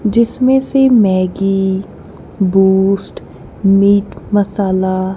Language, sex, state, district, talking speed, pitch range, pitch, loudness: Hindi, female, Punjab, Kapurthala, 80 wpm, 190-210 Hz, 195 Hz, -13 LUFS